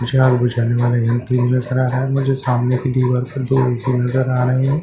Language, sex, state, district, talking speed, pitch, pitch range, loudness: Hindi, male, Bihar, Katihar, 260 wpm, 125 Hz, 125-130 Hz, -17 LUFS